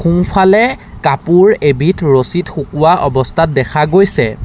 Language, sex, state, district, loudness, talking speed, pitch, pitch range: Assamese, male, Assam, Sonitpur, -11 LUFS, 110 wpm, 165 Hz, 145-185 Hz